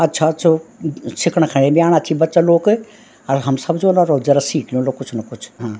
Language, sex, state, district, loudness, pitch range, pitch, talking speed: Garhwali, female, Uttarakhand, Tehri Garhwal, -16 LUFS, 135-170 Hz, 160 Hz, 215 wpm